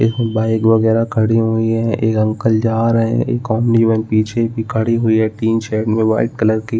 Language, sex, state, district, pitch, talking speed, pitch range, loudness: Hindi, male, Chhattisgarh, Balrampur, 110 Hz, 210 wpm, 110-115 Hz, -16 LUFS